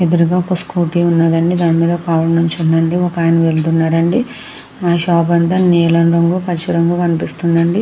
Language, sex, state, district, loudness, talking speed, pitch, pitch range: Telugu, female, Andhra Pradesh, Krishna, -14 LUFS, 170 wpm, 170 Hz, 165-175 Hz